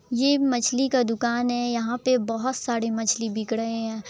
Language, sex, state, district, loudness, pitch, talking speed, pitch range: Hindi, male, Bihar, Araria, -24 LUFS, 240 Hz, 190 wpm, 225-255 Hz